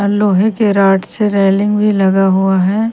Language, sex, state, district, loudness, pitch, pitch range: Hindi, female, Haryana, Rohtak, -12 LUFS, 200 Hz, 195-210 Hz